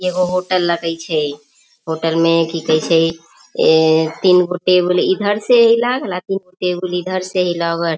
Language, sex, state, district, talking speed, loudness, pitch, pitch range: Maithili, female, Bihar, Samastipur, 130 wpm, -16 LUFS, 180 Hz, 165-185 Hz